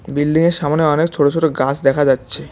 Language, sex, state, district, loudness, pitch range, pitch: Bengali, male, West Bengal, Cooch Behar, -15 LUFS, 140-160 Hz, 145 Hz